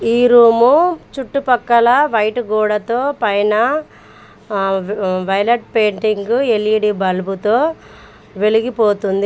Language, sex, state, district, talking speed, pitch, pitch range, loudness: Telugu, female, Telangana, Mahabubabad, 85 wpm, 220 Hz, 205-245 Hz, -15 LUFS